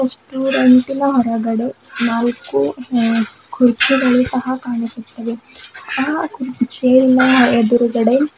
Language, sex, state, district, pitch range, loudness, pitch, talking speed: Kannada, female, Karnataka, Bidar, 235-260 Hz, -16 LUFS, 250 Hz, 85 wpm